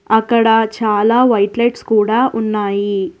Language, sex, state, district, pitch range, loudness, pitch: Telugu, female, Telangana, Hyderabad, 210-230 Hz, -14 LUFS, 220 Hz